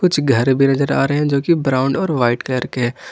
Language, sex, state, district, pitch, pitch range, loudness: Hindi, male, Jharkhand, Ranchi, 135 Hz, 130-145 Hz, -17 LUFS